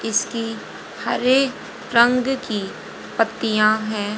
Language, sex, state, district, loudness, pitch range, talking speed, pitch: Hindi, female, Haryana, Rohtak, -20 LUFS, 215-245 Hz, 85 wpm, 225 Hz